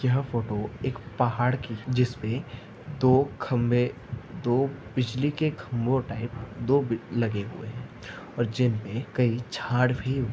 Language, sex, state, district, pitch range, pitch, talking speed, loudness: Hindi, male, Maharashtra, Aurangabad, 115-130 Hz, 125 Hz, 115 wpm, -27 LUFS